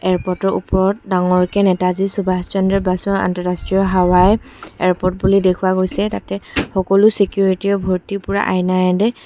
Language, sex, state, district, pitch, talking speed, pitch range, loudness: Assamese, female, Assam, Kamrup Metropolitan, 190 Hz, 115 wpm, 185-195 Hz, -16 LUFS